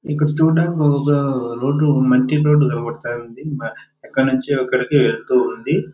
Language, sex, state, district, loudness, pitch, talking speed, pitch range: Telugu, male, Andhra Pradesh, Chittoor, -18 LUFS, 145 Hz, 120 wpm, 130-150 Hz